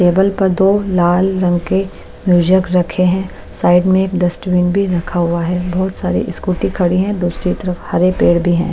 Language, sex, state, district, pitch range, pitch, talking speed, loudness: Hindi, female, Chhattisgarh, Raipur, 175-190 Hz, 180 Hz, 185 wpm, -15 LUFS